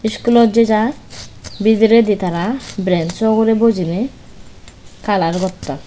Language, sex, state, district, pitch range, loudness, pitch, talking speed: Chakma, female, Tripura, West Tripura, 185-230 Hz, -15 LUFS, 220 Hz, 90 wpm